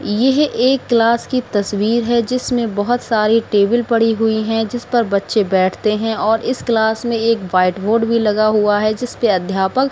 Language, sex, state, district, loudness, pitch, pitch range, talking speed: Hindi, female, Uttar Pradesh, Budaun, -16 LUFS, 225 Hz, 210-240 Hz, 195 wpm